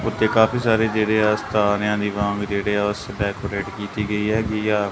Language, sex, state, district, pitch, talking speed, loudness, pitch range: Punjabi, male, Punjab, Kapurthala, 105 Hz, 195 wpm, -21 LUFS, 105-110 Hz